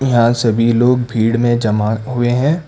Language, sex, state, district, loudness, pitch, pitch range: Hindi, male, Karnataka, Bangalore, -14 LUFS, 120 Hz, 115-125 Hz